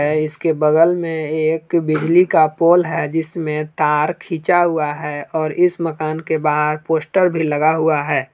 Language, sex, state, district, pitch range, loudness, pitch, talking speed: Hindi, male, Jharkhand, Palamu, 150-165 Hz, -17 LUFS, 155 Hz, 170 wpm